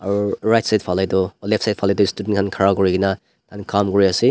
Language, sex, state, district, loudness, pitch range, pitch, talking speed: Nagamese, male, Nagaland, Dimapur, -19 LUFS, 95-105 Hz, 100 Hz, 195 wpm